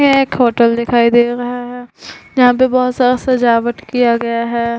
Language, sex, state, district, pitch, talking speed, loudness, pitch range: Hindi, female, Bihar, Vaishali, 245 Hz, 190 wpm, -13 LUFS, 235-250 Hz